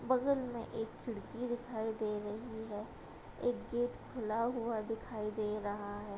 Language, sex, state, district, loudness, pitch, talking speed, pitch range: Hindi, female, Uttar Pradesh, Budaun, -39 LUFS, 225 Hz, 175 wpm, 215-240 Hz